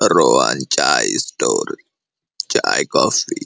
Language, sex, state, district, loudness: Hindi, male, Jharkhand, Jamtara, -16 LUFS